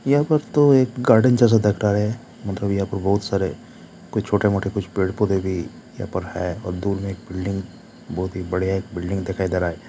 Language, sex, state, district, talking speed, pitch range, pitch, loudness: Hindi, male, Jharkhand, Jamtara, 225 wpm, 95-110 Hz, 100 Hz, -21 LUFS